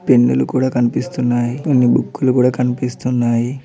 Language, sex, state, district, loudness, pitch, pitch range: Telugu, male, Telangana, Mahabubabad, -16 LUFS, 125 Hz, 120-130 Hz